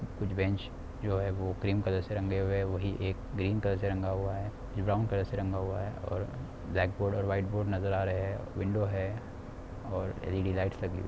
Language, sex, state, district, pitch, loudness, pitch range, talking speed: Hindi, male, Bihar, Samastipur, 95 Hz, -33 LUFS, 95-100 Hz, 240 wpm